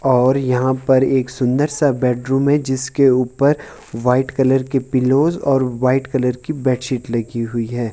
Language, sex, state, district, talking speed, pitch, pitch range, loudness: Hindi, male, Himachal Pradesh, Shimla, 165 wpm, 130 Hz, 125-135 Hz, -17 LUFS